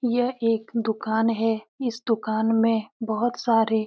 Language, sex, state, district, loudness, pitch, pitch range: Hindi, female, Uttar Pradesh, Etah, -24 LUFS, 225 Hz, 220-235 Hz